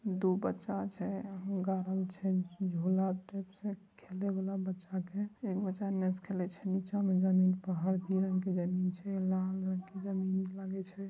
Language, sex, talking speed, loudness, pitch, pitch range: Angika, male, 115 wpm, -35 LUFS, 190 Hz, 185-195 Hz